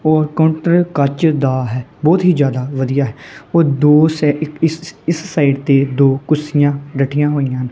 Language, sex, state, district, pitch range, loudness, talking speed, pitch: Punjabi, female, Punjab, Kapurthala, 140-160 Hz, -15 LUFS, 150 wpm, 145 Hz